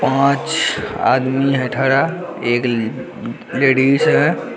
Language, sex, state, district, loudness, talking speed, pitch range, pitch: Hindi, male, Bihar, Araria, -16 LUFS, 90 wpm, 130-140 Hz, 135 Hz